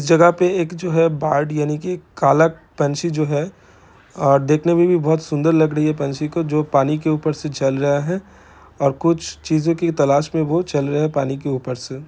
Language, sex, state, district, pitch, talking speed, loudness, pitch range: Hindi, male, Bihar, Saran, 150 Hz, 230 wpm, -18 LUFS, 140-165 Hz